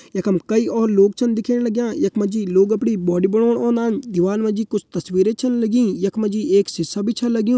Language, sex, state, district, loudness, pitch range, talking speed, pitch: Hindi, male, Uttarakhand, Uttarkashi, -19 LUFS, 195-230 Hz, 220 wpm, 215 Hz